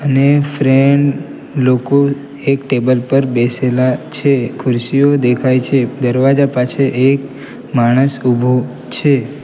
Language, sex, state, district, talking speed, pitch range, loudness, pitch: Gujarati, male, Gujarat, Valsad, 110 wpm, 125-140 Hz, -14 LUFS, 135 Hz